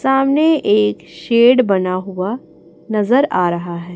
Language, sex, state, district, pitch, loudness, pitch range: Hindi, female, Chhattisgarh, Raipur, 205 Hz, -15 LUFS, 175-255 Hz